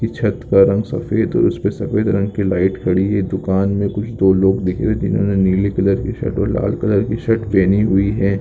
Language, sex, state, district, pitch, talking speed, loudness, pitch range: Hindi, male, Rajasthan, Nagaur, 100 Hz, 230 wpm, -17 LUFS, 95-105 Hz